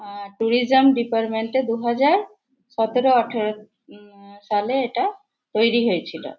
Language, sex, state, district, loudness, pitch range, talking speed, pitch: Bengali, female, West Bengal, Purulia, -21 LUFS, 215-265 Hz, 120 wpm, 235 Hz